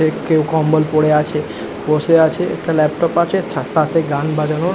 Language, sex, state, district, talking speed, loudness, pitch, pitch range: Bengali, male, West Bengal, Jhargram, 150 wpm, -16 LUFS, 155 Hz, 150-165 Hz